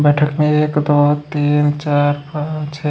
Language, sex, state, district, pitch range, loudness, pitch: Hindi, male, Odisha, Khordha, 145-150 Hz, -16 LUFS, 150 Hz